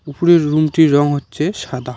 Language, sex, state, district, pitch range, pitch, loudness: Bengali, male, West Bengal, Cooch Behar, 145-160 Hz, 150 Hz, -15 LUFS